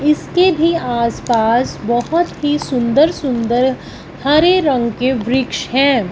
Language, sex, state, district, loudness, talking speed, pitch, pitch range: Hindi, female, Punjab, Fazilka, -15 LUFS, 120 wpm, 260 Hz, 240-300 Hz